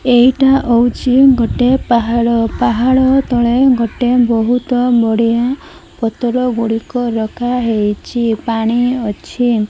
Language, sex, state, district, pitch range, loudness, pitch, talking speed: Odia, female, Odisha, Malkangiri, 230-250 Hz, -13 LUFS, 240 Hz, 85 wpm